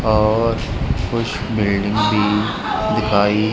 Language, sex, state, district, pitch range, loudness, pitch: Hindi, male, Punjab, Kapurthala, 105-110 Hz, -18 LUFS, 105 Hz